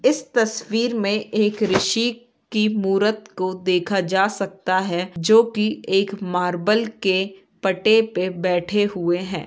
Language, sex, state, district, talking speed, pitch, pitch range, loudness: Hindi, female, Bihar, Saran, 140 wpm, 200 Hz, 185-220 Hz, -21 LUFS